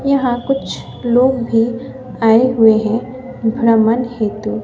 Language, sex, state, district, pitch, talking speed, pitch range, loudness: Hindi, female, Bihar, West Champaran, 235 Hz, 115 wpm, 225-250 Hz, -15 LUFS